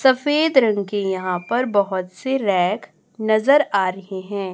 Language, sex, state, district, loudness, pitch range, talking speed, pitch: Hindi, male, Chhattisgarh, Raipur, -20 LUFS, 190-255 Hz, 160 wpm, 205 Hz